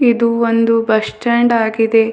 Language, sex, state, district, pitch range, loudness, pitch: Kannada, female, Karnataka, Bidar, 225-235 Hz, -14 LUFS, 230 Hz